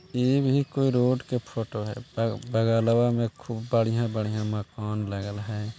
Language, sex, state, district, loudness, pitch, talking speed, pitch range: Magahi, male, Bihar, Jahanabad, -27 LUFS, 115 Hz, 165 wpm, 105-125 Hz